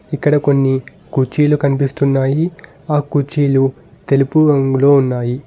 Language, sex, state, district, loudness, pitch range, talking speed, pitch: Telugu, male, Telangana, Hyderabad, -15 LUFS, 135-150 Hz, 100 wpm, 140 Hz